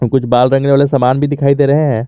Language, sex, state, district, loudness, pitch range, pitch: Hindi, male, Jharkhand, Garhwa, -12 LUFS, 125-140 Hz, 140 Hz